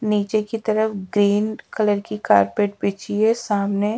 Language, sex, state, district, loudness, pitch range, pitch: Hindi, female, Bihar, Patna, -21 LUFS, 200-215 Hz, 210 Hz